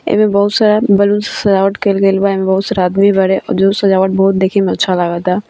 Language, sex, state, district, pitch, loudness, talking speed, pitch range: Bhojpuri, female, Bihar, Gopalganj, 195 Hz, -12 LUFS, 240 wpm, 190-200 Hz